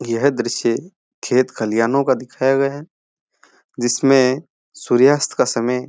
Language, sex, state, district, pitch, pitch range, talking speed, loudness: Rajasthani, male, Rajasthan, Churu, 130 Hz, 120-140 Hz, 130 wpm, -18 LUFS